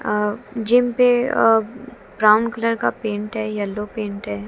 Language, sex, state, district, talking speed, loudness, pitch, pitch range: Hindi, female, Haryana, Jhajjar, 145 wpm, -19 LUFS, 220 Hz, 210-235 Hz